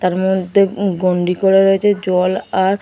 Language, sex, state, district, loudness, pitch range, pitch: Bengali, female, West Bengal, Dakshin Dinajpur, -15 LUFS, 185-195 Hz, 190 Hz